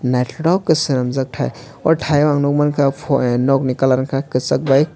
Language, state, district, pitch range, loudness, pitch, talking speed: Kokborok, Tripura, West Tripura, 130-145 Hz, -17 LUFS, 135 Hz, 195 wpm